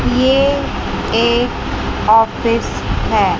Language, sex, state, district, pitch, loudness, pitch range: Hindi, female, Chandigarh, Chandigarh, 240 Hz, -15 LUFS, 230-260 Hz